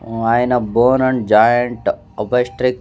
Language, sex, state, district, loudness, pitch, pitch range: Telugu, male, Andhra Pradesh, Sri Satya Sai, -16 LUFS, 120 Hz, 115-125 Hz